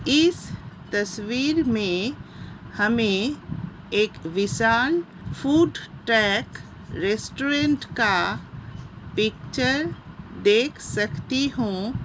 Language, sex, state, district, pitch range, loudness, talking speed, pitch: Hindi, female, Uttar Pradesh, Hamirpur, 205-285 Hz, -23 LUFS, 70 wpm, 230 Hz